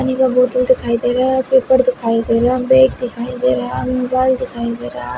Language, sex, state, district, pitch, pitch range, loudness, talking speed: Hindi, female, Himachal Pradesh, Shimla, 250 Hz, 235-260 Hz, -15 LUFS, 245 wpm